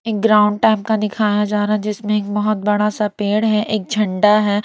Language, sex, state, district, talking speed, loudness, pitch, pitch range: Hindi, female, Maharashtra, Mumbai Suburban, 230 wpm, -17 LUFS, 210 Hz, 210-215 Hz